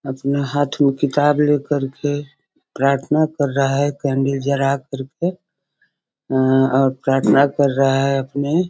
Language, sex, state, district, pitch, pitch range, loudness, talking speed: Hindi, female, Bihar, Sitamarhi, 140 Hz, 135-145 Hz, -18 LUFS, 150 wpm